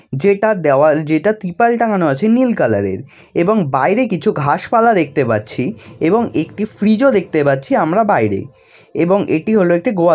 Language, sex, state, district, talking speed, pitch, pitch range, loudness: Bengali, male, West Bengal, Jalpaiguri, 165 wpm, 185 Hz, 150-220 Hz, -15 LUFS